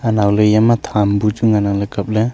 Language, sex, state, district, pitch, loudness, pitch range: Wancho, male, Arunachal Pradesh, Longding, 105 Hz, -15 LUFS, 100-110 Hz